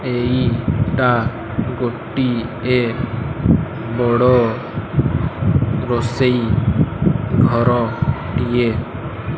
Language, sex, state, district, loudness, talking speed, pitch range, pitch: Odia, male, Odisha, Malkangiri, -18 LUFS, 30 wpm, 120-130 Hz, 120 Hz